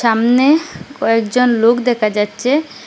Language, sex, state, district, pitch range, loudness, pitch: Bengali, female, Assam, Hailakandi, 225-250 Hz, -14 LUFS, 240 Hz